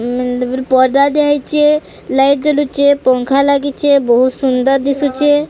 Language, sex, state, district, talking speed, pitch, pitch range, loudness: Odia, female, Odisha, Sambalpur, 130 wpm, 275 Hz, 260-290 Hz, -13 LUFS